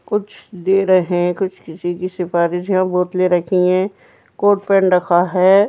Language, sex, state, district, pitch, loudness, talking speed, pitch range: Hindi, female, Uttar Pradesh, Jyotiba Phule Nagar, 185 Hz, -16 LUFS, 170 wpm, 180-195 Hz